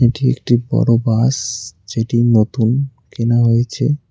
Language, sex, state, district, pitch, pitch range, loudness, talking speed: Bengali, male, West Bengal, Cooch Behar, 120 Hz, 115-130 Hz, -16 LUFS, 115 wpm